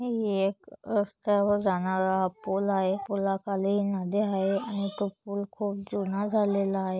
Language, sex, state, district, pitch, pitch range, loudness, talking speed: Marathi, female, Maharashtra, Chandrapur, 200 Hz, 195-205 Hz, -28 LUFS, 135 wpm